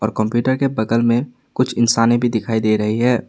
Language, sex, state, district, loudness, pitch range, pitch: Hindi, male, Assam, Sonitpur, -17 LUFS, 110-125 Hz, 115 Hz